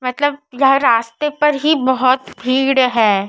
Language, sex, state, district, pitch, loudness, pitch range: Hindi, female, Madhya Pradesh, Dhar, 260 Hz, -15 LUFS, 245-285 Hz